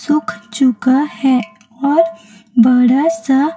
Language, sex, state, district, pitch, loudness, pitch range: Hindi, female, Chhattisgarh, Raipur, 255 Hz, -14 LUFS, 230-290 Hz